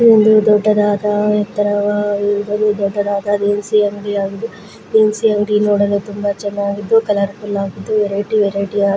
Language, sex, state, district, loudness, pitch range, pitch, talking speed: Kannada, female, Karnataka, Raichur, -15 LUFS, 200-210 Hz, 205 Hz, 120 wpm